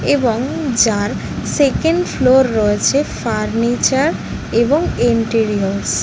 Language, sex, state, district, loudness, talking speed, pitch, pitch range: Bengali, female, West Bengal, Kolkata, -16 LUFS, 90 wpm, 240 Hz, 220-275 Hz